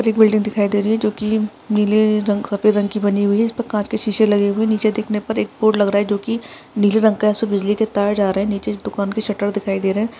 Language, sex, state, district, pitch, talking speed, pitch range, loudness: Hindi, female, Bihar, Saharsa, 210 Hz, 305 wpm, 205-220 Hz, -18 LUFS